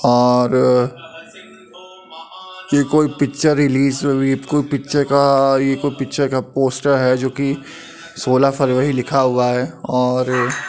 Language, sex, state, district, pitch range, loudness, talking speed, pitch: Hindi, male, Uttar Pradesh, Etah, 130-145 Hz, -17 LUFS, 145 wpm, 135 Hz